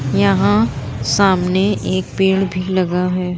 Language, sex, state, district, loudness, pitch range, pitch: Hindi, female, Bihar, Muzaffarpur, -16 LUFS, 125-190 Hz, 180 Hz